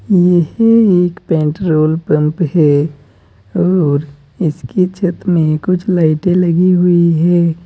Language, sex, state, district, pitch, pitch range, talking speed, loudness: Hindi, male, Uttar Pradesh, Saharanpur, 170 Hz, 155-180 Hz, 110 wpm, -13 LUFS